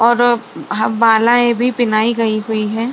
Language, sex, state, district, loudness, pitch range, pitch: Hindi, female, Bihar, Saran, -14 LUFS, 220-240 Hz, 230 Hz